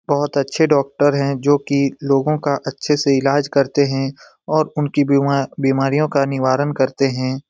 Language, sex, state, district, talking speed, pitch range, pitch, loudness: Hindi, male, Bihar, Lakhisarai, 170 wpm, 135-145 Hz, 140 Hz, -18 LUFS